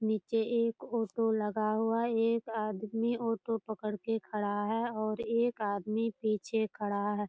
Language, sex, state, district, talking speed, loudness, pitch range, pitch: Hindi, female, Bihar, Purnia, 155 wpm, -33 LUFS, 215-230 Hz, 220 Hz